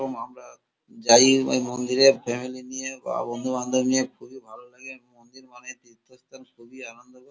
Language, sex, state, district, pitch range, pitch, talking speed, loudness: Bengali, male, West Bengal, Kolkata, 120-130 Hz, 130 Hz, 130 wpm, -22 LUFS